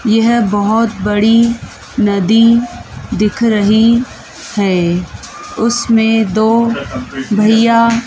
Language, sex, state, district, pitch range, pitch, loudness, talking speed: Hindi, female, Madhya Pradesh, Dhar, 210-230 Hz, 225 Hz, -12 LUFS, 80 wpm